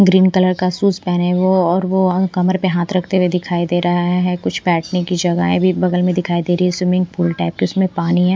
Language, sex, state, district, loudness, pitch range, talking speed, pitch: Hindi, female, Punjab, Pathankot, -16 LUFS, 175-185 Hz, 260 wpm, 180 Hz